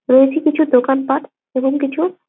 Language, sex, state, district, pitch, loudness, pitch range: Bengali, female, West Bengal, Jalpaiguri, 275 Hz, -16 LUFS, 265-310 Hz